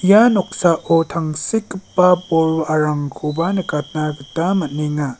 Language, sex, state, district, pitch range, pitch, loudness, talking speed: Garo, male, Meghalaya, West Garo Hills, 150-185 Hz, 165 Hz, -18 LUFS, 90 wpm